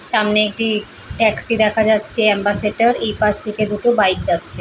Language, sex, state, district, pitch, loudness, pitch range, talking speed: Bengali, female, West Bengal, Paschim Medinipur, 215 Hz, -15 LUFS, 210-220 Hz, 170 wpm